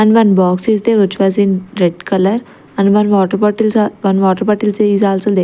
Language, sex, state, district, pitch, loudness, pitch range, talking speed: English, female, Chandigarh, Chandigarh, 200 Hz, -13 LUFS, 195-210 Hz, 220 wpm